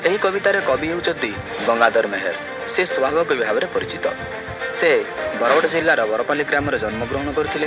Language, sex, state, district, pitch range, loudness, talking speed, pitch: Odia, male, Odisha, Malkangiri, 145-200 Hz, -19 LUFS, 155 wpm, 155 Hz